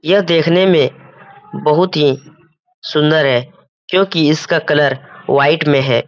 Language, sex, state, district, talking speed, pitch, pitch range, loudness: Hindi, male, Bihar, Jamui, 130 wpm, 155 Hz, 145-175 Hz, -14 LUFS